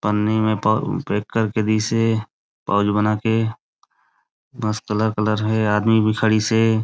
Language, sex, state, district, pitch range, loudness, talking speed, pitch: Chhattisgarhi, male, Chhattisgarh, Raigarh, 105-110 Hz, -20 LUFS, 175 wpm, 110 Hz